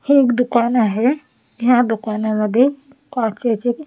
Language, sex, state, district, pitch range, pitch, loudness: Marathi, female, Maharashtra, Washim, 225-260 Hz, 245 Hz, -17 LUFS